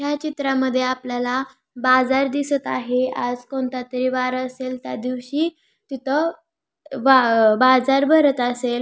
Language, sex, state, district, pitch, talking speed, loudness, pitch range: Marathi, female, Maharashtra, Pune, 260 Hz, 110 wpm, -20 LUFS, 255-285 Hz